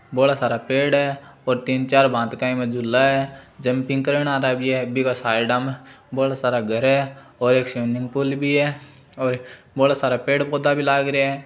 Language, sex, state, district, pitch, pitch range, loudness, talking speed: Marwari, male, Rajasthan, Churu, 135 Hz, 125-140 Hz, -21 LUFS, 205 wpm